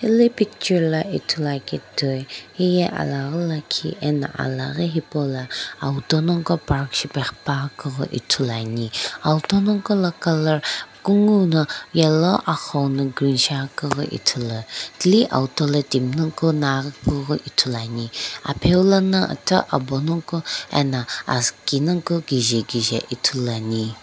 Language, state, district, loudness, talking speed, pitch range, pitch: Sumi, Nagaland, Dimapur, -21 LUFS, 80 wpm, 130-170 Hz, 145 Hz